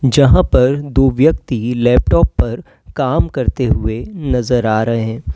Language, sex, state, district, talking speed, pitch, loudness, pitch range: Hindi, male, Uttar Pradesh, Lalitpur, 145 wpm, 125 Hz, -15 LUFS, 115-135 Hz